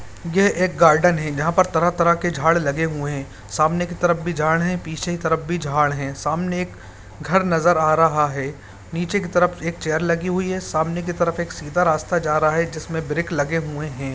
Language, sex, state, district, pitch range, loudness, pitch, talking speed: Hindi, male, Bihar, Saran, 150-175 Hz, -20 LUFS, 165 Hz, 220 wpm